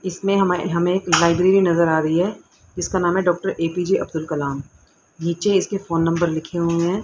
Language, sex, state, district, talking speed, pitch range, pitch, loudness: Hindi, female, Haryana, Rohtak, 195 wpm, 165-185 Hz, 175 Hz, -20 LUFS